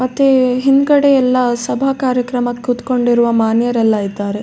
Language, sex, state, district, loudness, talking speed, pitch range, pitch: Kannada, female, Karnataka, Dakshina Kannada, -14 LUFS, 135 wpm, 235-265 Hz, 250 Hz